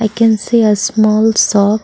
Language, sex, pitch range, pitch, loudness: English, female, 210-225 Hz, 215 Hz, -12 LUFS